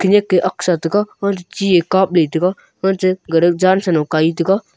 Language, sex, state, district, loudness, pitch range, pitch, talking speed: Wancho, male, Arunachal Pradesh, Longding, -16 LUFS, 170-195 Hz, 185 Hz, 200 wpm